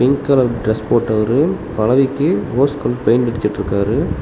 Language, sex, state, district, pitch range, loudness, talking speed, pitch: Tamil, male, Tamil Nadu, Namakkal, 110-135 Hz, -16 LUFS, 130 wpm, 120 Hz